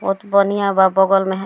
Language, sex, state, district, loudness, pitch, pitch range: Bhojpuri, female, Bihar, Muzaffarpur, -15 LUFS, 195 Hz, 190-200 Hz